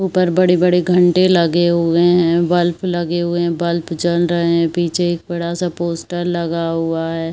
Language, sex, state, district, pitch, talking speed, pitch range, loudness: Hindi, female, Uttar Pradesh, Varanasi, 175 Hz, 180 wpm, 170-175 Hz, -16 LUFS